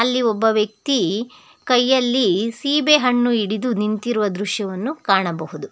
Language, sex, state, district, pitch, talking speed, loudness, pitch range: Kannada, female, Karnataka, Bangalore, 230 Hz, 95 wpm, -19 LUFS, 210-250 Hz